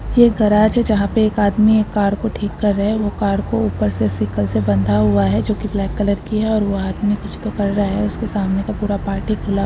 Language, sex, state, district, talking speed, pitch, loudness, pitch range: Hindi, female, Uttar Pradesh, Deoria, 280 wpm, 205 Hz, -18 LUFS, 195-215 Hz